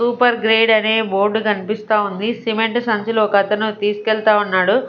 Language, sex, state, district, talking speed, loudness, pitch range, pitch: Telugu, female, Andhra Pradesh, Sri Satya Sai, 135 wpm, -17 LUFS, 210-225 Hz, 215 Hz